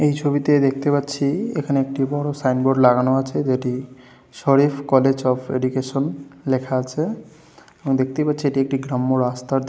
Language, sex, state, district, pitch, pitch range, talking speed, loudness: Bengali, male, West Bengal, Jalpaiguri, 135 Hz, 130-145 Hz, 150 wpm, -20 LUFS